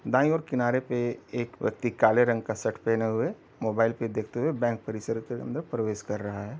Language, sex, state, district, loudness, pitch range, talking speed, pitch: Hindi, male, Uttar Pradesh, Gorakhpur, -28 LUFS, 110-120 Hz, 220 wpm, 115 Hz